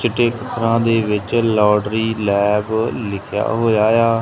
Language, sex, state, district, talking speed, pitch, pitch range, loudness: Punjabi, male, Punjab, Kapurthala, 130 wpm, 110 Hz, 105-115 Hz, -17 LUFS